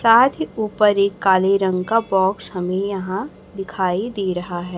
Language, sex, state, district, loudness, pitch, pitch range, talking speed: Hindi, male, Chhattisgarh, Raipur, -19 LUFS, 195 Hz, 185-210 Hz, 175 wpm